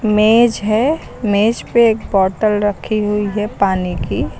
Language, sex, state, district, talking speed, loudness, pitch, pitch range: Hindi, female, Uttar Pradesh, Lucknow, 150 wpm, -15 LUFS, 210 Hz, 205-225 Hz